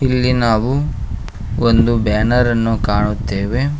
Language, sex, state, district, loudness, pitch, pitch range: Kannada, male, Karnataka, Koppal, -16 LUFS, 115 Hz, 105-125 Hz